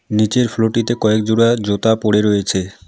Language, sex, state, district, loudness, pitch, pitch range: Bengali, male, West Bengal, Alipurduar, -16 LUFS, 110 Hz, 105-115 Hz